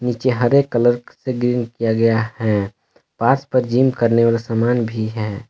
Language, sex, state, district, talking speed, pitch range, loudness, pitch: Hindi, male, Jharkhand, Palamu, 175 wpm, 115-125 Hz, -18 LUFS, 115 Hz